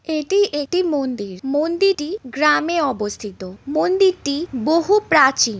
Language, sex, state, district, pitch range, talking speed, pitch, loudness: Bengali, female, West Bengal, Malda, 260-345 Hz, 95 wpm, 300 Hz, -18 LUFS